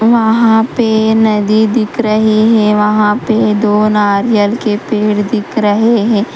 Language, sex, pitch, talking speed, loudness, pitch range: Hindi, female, 215 Hz, 140 wpm, -11 LUFS, 210-225 Hz